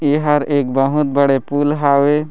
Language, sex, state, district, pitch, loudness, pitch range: Chhattisgarhi, male, Chhattisgarh, Raigarh, 145 Hz, -15 LUFS, 140-150 Hz